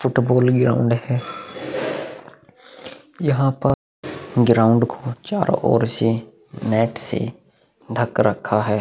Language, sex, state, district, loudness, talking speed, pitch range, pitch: Hindi, male, Uttar Pradesh, Muzaffarnagar, -20 LUFS, 100 wpm, 115-130 Hz, 120 Hz